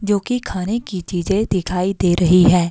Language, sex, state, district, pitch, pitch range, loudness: Hindi, female, Himachal Pradesh, Shimla, 185 Hz, 180-205 Hz, -18 LUFS